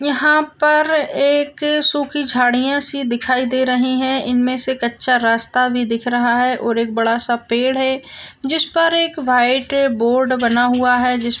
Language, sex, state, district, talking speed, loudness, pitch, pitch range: Hindi, female, Maharashtra, Nagpur, 180 wpm, -16 LUFS, 255 Hz, 245-285 Hz